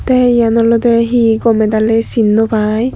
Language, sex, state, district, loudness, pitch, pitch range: Chakma, female, Tripura, Dhalai, -12 LUFS, 230 Hz, 220-235 Hz